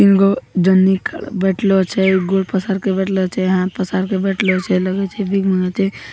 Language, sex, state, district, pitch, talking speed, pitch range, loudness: Hindi, female, Bihar, Begusarai, 190 Hz, 175 wpm, 185-195 Hz, -17 LUFS